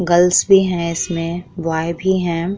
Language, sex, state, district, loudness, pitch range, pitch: Hindi, female, Uttar Pradesh, Muzaffarnagar, -17 LUFS, 170-180 Hz, 175 Hz